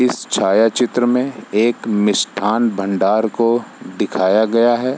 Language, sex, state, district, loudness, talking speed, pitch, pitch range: Hindi, male, Bihar, East Champaran, -16 LUFS, 120 wpm, 115 Hz, 105-120 Hz